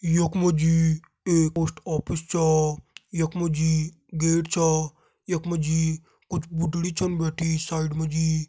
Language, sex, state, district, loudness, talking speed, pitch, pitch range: Garhwali, male, Uttarakhand, Tehri Garhwal, -25 LUFS, 135 wpm, 160 Hz, 160-170 Hz